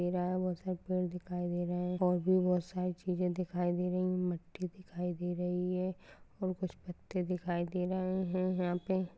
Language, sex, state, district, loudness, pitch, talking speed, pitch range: Hindi, female, Maharashtra, Sindhudurg, -35 LUFS, 180 Hz, 205 wpm, 180-185 Hz